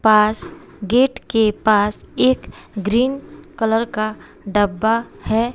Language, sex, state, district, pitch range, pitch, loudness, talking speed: Hindi, female, Bihar, West Champaran, 210-255 Hz, 225 Hz, -18 LUFS, 110 wpm